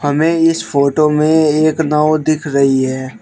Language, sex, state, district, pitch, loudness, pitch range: Hindi, male, Uttar Pradesh, Shamli, 150 Hz, -13 LUFS, 140-155 Hz